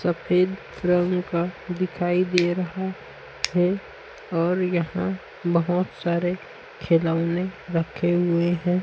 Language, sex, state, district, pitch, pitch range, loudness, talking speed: Hindi, male, Chhattisgarh, Raipur, 175 Hz, 170-180 Hz, -24 LUFS, 100 wpm